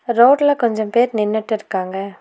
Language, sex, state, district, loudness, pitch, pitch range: Tamil, female, Tamil Nadu, Nilgiris, -17 LUFS, 220 Hz, 210-240 Hz